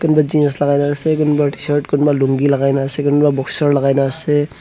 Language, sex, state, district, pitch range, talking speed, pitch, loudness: Nagamese, male, Nagaland, Dimapur, 140-150 Hz, 285 wpm, 145 Hz, -15 LUFS